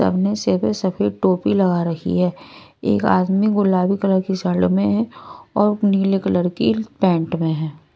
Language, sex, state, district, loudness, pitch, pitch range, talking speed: Hindi, female, Punjab, Kapurthala, -19 LUFS, 185 Hz, 170-195 Hz, 165 wpm